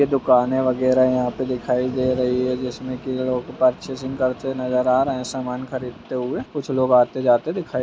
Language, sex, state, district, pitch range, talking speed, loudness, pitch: Hindi, male, Bihar, Purnia, 125-130 Hz, 200 wpm, -21 LUFS, 130 Hz